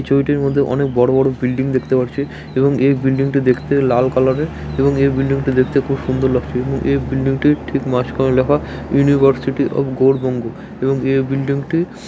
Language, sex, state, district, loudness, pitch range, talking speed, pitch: Bengali, male, West Bengal, Malda, -16 LUFS, 130-140 Hz, 175 wpm, 135 Hz